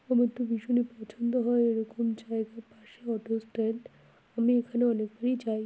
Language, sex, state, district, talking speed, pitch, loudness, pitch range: Bengali, female, West Bengal, Kolkata, 150 wpm, 230 Hz, -30 LUFS, 225-240 Hz